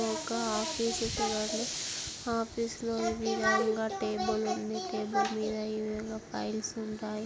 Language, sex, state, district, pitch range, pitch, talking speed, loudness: Telugu, female, Andhra Pradesh, Chittoor, 210-230 Hz, 215 Hz, 115 wpm, -32 LUFS